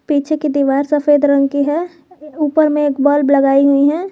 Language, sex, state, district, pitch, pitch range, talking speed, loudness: Hindi, female, Jharkhand, Garhwa, 290 Hz, 280-305 Hz, 205 wpm, -14 LUFS